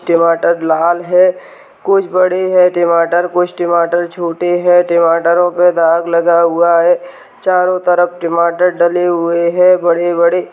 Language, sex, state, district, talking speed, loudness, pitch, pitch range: Hindi, female, Uttarakhand, Tehri Garhwal, 135 wpm, -12 LUFS, 175 Hz, 170-180 Hz